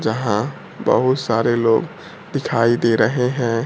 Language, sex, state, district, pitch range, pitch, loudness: Hindi, male, Bihar, Kaimur, 115-125 Hz, 115 Hz, -18 LUFS